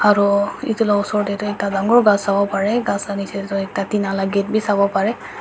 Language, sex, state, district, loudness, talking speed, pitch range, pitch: Nagamese, female, Nagaland, Dimapur, -18 LUFS, 235 wpm, 200-210 Hz, 200 Hz